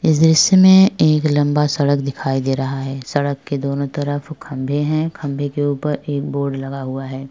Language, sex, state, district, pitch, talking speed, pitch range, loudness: Hindi, female, Uttar Pradesh, Jyotiba Phule Nagar, 145 Hz, 195 wpm, 135-150 Hz, -17 LUFS